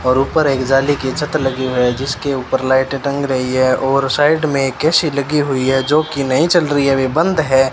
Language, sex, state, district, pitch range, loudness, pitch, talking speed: Hindi, male, Rajasthan, Bikaner, 130-150 Hz, -15 LUFS, 135 Hz, 240 wpm